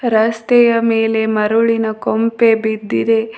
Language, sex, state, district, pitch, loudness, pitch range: Kannada, female, Karnataka, Bidar, 225 Hz, -14 LUFS, 220-230 Hz